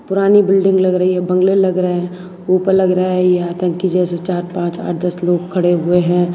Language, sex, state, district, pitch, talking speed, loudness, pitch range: Hindi, female, Gujarat, Valsad, 180 Hz, 225 wpm, -15 LUFS, 175-185 Hz